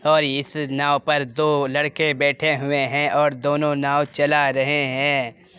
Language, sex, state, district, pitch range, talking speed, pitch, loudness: Hindi, male, Uttar Pradesh, Jyotiba Phule Nagar, 140-150 Hz, 160 wpm, 145 Hz, -20 LUFS